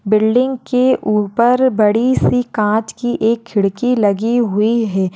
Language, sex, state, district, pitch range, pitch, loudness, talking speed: Hindi, female, Rajasthan, Churu, 210-245 Hz, 230 Hz, -15 LUFS, 140 wpm